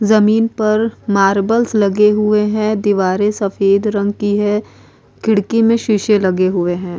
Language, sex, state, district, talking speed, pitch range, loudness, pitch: Hindi, female, Goa, North and South Goa, 145 wpm, 200-215 Hz, -15 LUFS, 210 Hz